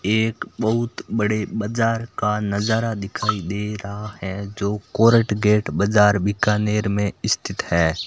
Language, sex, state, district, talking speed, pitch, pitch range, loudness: Hindi, male, Rajasthan, Bikaner, 135 wpm, 105 Hz, 100-110 Hz, -21 LUFS